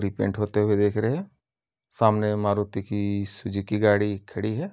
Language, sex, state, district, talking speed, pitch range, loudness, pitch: Hindi, male, Uttar Pradesh, Jyotiba Phule Nagar, 175 wpm, 100-105 Hz, -25 LUFS, 105 Hz